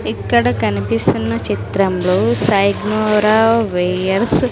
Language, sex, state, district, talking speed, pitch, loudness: Telugu, female, Andhra Pradesh, Sri Satya Sai, 65 wpm, 180 Hz, -15 LUFS